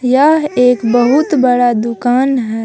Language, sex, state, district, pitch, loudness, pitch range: Hindi, female, Jharkhand, Palamu, 250 Hz, -12 LUFS, 240-270 Hz